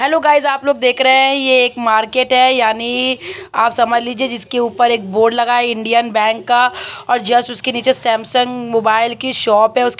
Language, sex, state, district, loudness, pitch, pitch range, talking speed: Hindi, female, Uttar Pradesh, Muzaffarnagar, -14 LUFS, 245 Hz, 230-260 Hz, 200 wpm